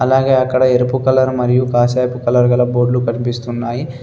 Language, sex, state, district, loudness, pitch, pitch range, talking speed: Telugu, male, Telangana, Adilabad, -15 LUFS, 125 Hz, 120-130 Hz, 150 wpm